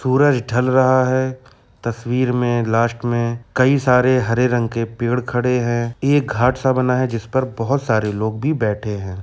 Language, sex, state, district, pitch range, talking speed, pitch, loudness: Hindi, male, Uttar Pradesh, Jyotiba Phule Nagar, 115-130 Hz, 190 wpm, 125 Hz, -18 LUFS